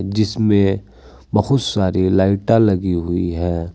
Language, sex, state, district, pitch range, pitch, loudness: Hindi, male, Uttar Pradesh, Saharanpur, 90-105 Hz, 95 Hz, -17 LUFS